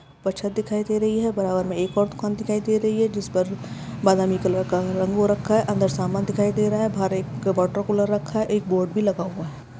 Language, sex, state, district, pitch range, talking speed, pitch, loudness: Hindi, female, Chhattisgarh, Korba, 185-210 Hz, 320 wpm, 200 Hz, -23 LUFS